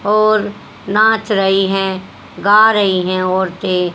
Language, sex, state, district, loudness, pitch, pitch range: Hindi, female, Haryana, Jhajjar, -14 LUFS, 195 Hz, 190-210 Hz